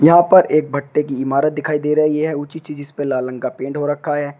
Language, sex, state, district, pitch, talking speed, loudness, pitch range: Hindi, male, Uttar Pradesh, Shamli, 150 Hz, 270 wpm, -17 LUFS, 145-155 Hz